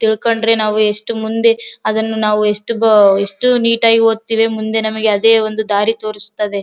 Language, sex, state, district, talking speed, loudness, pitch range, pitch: Kannada, female, Karnataka, Bellary, 165 wpm, -14 LUFS, 210-225 Hz, 220 Hz